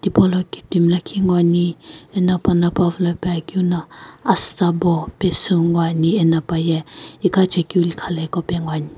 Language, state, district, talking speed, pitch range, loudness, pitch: Sumi, Nagaland, Kohima, 160 wpm, 165-180 Hz, -18 LUFS, 175 Hz